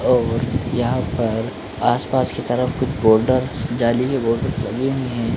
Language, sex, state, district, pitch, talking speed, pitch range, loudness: Hindi, male, Jharkhand, Sahebganj, 125 Hz, 190 wpm, 115-130 Hz, -20 LUFS